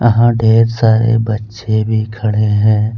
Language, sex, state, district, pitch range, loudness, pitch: Hindi, male, Jharkhand, Deoghar, 110-115 Hz, -13 LUFS, 110 Hz